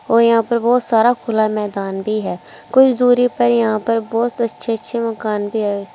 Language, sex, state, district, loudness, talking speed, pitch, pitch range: Hindi, female, Uttar Pradesh, Saharanpur, -17 LUFS, 200 wpm, 230 Hz, 215-240 Hz